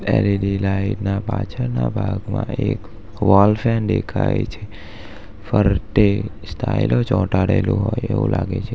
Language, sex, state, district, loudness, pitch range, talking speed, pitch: Gujarati, male, Gujarat, Valsad, -19 LUFS, 95-110 Hz, 115 wpm, 100 Hz